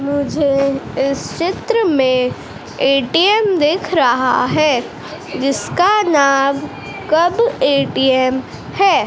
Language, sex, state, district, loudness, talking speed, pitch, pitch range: Hindi, female, Madhya Pradesh, Dhar, -15 LUFS, 85 wpm, 285 Hz, 275-355 Hz